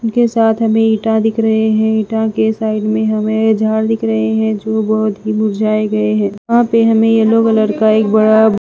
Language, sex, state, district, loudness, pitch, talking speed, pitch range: Hindi, female, Bihar, West Champaran, -13 LUFS, 220 Hz, 215 wpm, 215-225 Hz